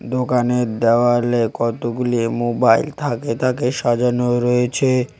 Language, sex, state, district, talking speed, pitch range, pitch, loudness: Bengali, male, West Bengal, Cooch Behar, 90 wpm, 120-125 Hz, 120 Hz, -18 LUFS